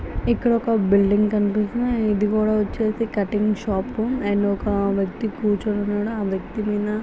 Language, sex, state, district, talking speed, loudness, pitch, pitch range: Telugu, female, Andhra Pradesh, Visakhapatnam, 155 wpm, -22 LUFS, 210 Hz, 205-220 Hz